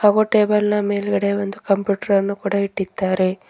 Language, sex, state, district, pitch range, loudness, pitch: Kannada, female, Karnataka, Bidar, 195-210 Hz, -19 LUFS, 200 Hz